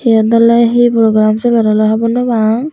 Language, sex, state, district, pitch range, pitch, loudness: Chakma, female, Tripura, Unakoti, 220-240 Hz, 230 Hz, -10 LUFS